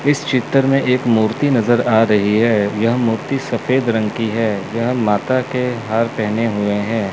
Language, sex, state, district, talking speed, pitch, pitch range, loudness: Hindi, male, Chandigarh, Chandigarh, 185 wpm, 115 Hz, 110-125 Hz, -17 LUFS